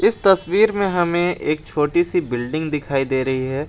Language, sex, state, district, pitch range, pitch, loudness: Hindi, male, Jharkhand, Garhwa, 140-180 Hz, 155 Hz, -19 LUFS